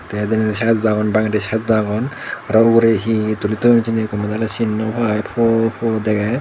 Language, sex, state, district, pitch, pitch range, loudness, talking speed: Chakma, male, Tripura, Dhalai, 110 Hz, 105-115 Hz, -17 LUFS, 215 wpm